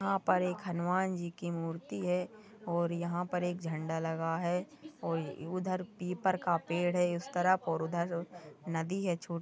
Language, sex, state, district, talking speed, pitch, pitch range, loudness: Hindi, female, Chhattisgarh, Kabirdham, 170 wpm, 175 Hz, 170-185 Hz, -34 LUFS